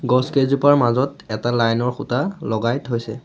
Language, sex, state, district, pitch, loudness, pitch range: Assamese, male, Assam, Sonitpur, 125 Hz, -19 LUFS, 115-140 Hz